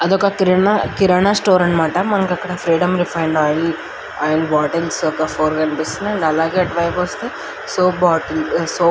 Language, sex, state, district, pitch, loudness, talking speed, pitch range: Telugu, male, Andhra Pradesh, Anantapur, 170 Hz, -17 LUFS, 150 wpm, 160-185 Hz